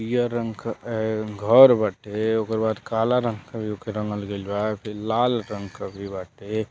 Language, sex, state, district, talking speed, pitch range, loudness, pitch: Bhojpuri, male, Uttar Pradesh, Deoria, 195 wpm, 105-115 Hz, -23 LUFS, 110 Hz